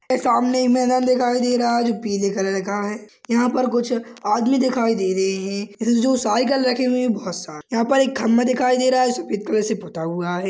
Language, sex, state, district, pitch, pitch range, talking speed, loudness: Hindi, male, Uttar Pradesh, Budaun, 235 Hz, 205-250 Hz, 235 wpm, -20 LUFS